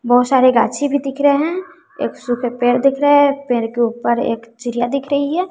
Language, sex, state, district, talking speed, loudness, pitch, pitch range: Hindi, female, Bihar, West Champaran, 230 wpm, -16 LUFS, 255 Hz, 240-285 Hz